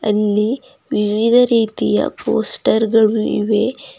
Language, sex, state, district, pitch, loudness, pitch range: Kannada, female, Karnataka, Bidar, 220 Hz, -16 LUFS, 210-235 Hz